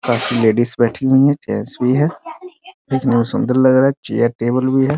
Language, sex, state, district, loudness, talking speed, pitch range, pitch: Hindi, male, Bihar, Muzaffarpur, -16 LUFS, 250 wpm, 120-145 Hz, 130 Hz